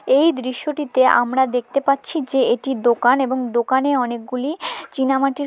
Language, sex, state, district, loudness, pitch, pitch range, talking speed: Bengali, female, West Bengal, Malda, -19 LUFS, 265 Hz, 250-275 Hz, 140 wpm